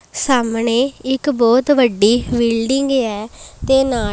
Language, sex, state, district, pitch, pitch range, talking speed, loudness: Punjabi, female, Punjab, Pathankot, 245 Hz, 230-265 Hz, 115 wpm, -16 LUFS